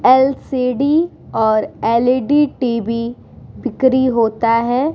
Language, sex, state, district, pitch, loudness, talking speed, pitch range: Hindi, female, Bihar, Vaishali, 255 Hz, -16 LUFS, 95 wpm, 230-265 Hz